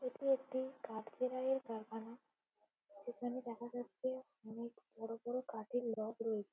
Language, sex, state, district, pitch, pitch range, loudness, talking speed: Bengali, female, West Bengal, Jhargram, 240 Hz, 225-255 Hz, -43 LUFS, 120 wpm